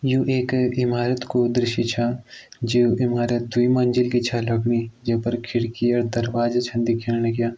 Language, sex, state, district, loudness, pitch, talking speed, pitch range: Garhwali, male, Uttarakhand, Tehri Garhwal, -22 LUFS, 120 Hz, 165 wpm, 120-125 Hz